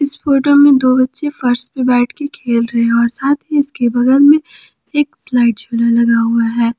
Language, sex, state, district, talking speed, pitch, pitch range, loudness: Hindi, female, Jharkhand, Palamu, 210 wpm, 255 Hz, 235-285 Hz, -13 LUFS